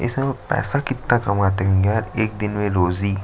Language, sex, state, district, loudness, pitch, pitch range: Hindi, male, Chhattisgarh, Jashpur, -21 LUFS, 105 Hz, 100-125 Hz